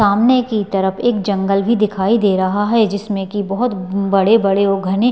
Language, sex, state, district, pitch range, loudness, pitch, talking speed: Hindi, female, Bihar, Madhepura, 195-220 Hz, -16 LUFS, 200 Hz, 200 wpm